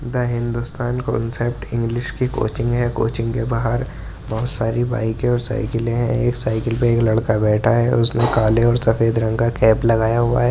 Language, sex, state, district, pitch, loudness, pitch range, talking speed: Hindi, male, Uttar Pradesh, Jyotiba Phule Nagar, 115 Hz, -19 LUFS, 115-120 Hz, 190 wpm